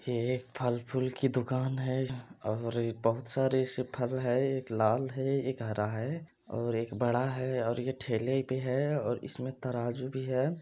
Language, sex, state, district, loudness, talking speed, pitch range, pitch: Maithili, male, Bihar, Supaul, -32 LUFS, 190 wpm, 120-130 Hz, 130 Hz